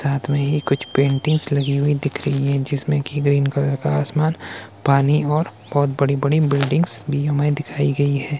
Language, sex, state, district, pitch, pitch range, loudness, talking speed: Hindi, male, Himachal Pradesh, Shimla, 140 Hz, 140-145 Hz, -19 LUFS, 200 wpm